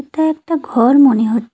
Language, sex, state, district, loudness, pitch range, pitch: Bengali, female, West Bengal, Cooch Behar, -13 LUFS, 235-315 Hz, 275 Hz